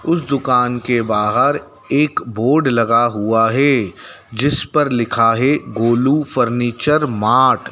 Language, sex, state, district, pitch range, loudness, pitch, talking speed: Hindi, male, Madhya Pradesh, Dhar, 115-140 Hz, -16 LUFS, 120 Hz, 130 wpm